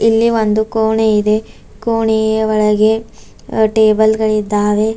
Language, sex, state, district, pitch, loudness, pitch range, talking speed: Kannada, female, Karnataka, Bidar, 220 Hz, -14 LUFS, 215-220 Hz, 95 wpm